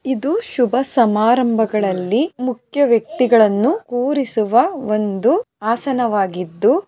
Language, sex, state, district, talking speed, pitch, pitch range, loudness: Kannada, female, Karnataka, Mysore, 70 wpm, 240 Hz, 215-265 Hz, -17 LUFS